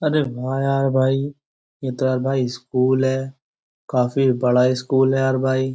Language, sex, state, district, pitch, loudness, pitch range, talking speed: Hindi, male, Uttar Pradesh, Jyotiba Phule Nagar, 130 Hz, -20 LUFS, 130-135 Hz, 165 wpm